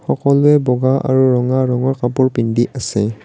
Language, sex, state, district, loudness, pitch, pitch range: Assamese, male, Assam, Kamrup Metropolitan, -15 LUFS, 130 Hz, 120-135 Hz